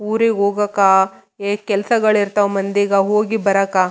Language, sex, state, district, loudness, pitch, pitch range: Kannada, female, Karnataka, Raichur, -16 LUFS, 200 Hz, 195-210 Hz